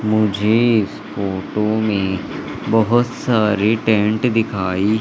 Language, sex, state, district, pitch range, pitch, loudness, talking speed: Hindi, male, Madhya Pradesh, Katni, 100-115 Hz, 110 Hz, -18 LUFS, 95 wpm